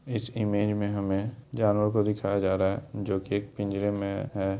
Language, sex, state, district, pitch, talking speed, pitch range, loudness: Hindi, male, Bihar, Jamui, 100 Hz, 210 wpm, 100-105 Hz, -28 LUFS